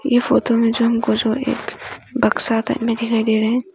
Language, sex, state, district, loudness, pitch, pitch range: Hindi, female, Arunachal Pradesh, Longding, -18 LUFS, 230 Hz, 225-240 Hz